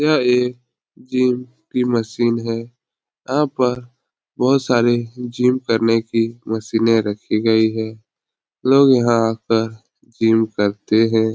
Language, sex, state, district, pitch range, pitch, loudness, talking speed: Hindi, male, Uttar Pradesh, Etah, 110-125 Hz, 115 Hz, -18 LUFS, 125 wpm